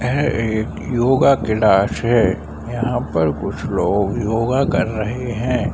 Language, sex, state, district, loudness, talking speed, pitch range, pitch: Hindi, male, Uttar Pradesh, Varanasi, -18 LUFS, 135 wpm, 110-125 Hz, 115 Hz